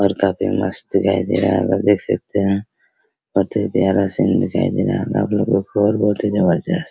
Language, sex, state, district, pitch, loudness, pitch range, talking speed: Hindi, male, Bihar, Araria, 100 Hz, -18 LUFS, 95-105 Hz, 225 wpm